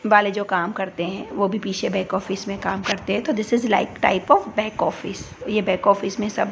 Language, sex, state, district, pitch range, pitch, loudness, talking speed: Hindi, female, Gujarat, Gandhinagar, 195-210 Hz, 200 Hz, -22 LUFS, 250 wpm